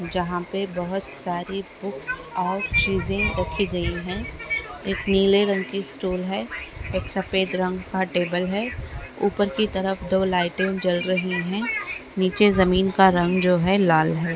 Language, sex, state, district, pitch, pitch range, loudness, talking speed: Hindi, female, Maharashtra, Chandrapur, 190 Hz, 180-195 Hz, -23 LUFS, 160 wpm